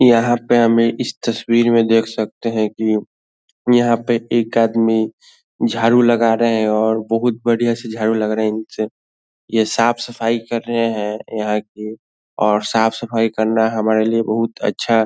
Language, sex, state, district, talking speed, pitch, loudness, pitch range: Hindi, male, Bihar, Lakhisarai, 170 wpm, 115 Hz, -17 LUFS, 110-115 Hz